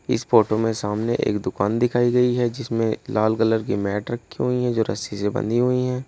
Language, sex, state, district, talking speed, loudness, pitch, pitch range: Hindi, male, Uttar Pradesh, Saharanpur, 225 wpm, -22 LUFS, 115 Hz, 105-125 Hz